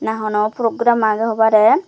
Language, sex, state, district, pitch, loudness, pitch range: Chakma, female, Tripura, Dhalai, 220 Hz, -16 LUFS, 215-230 Hz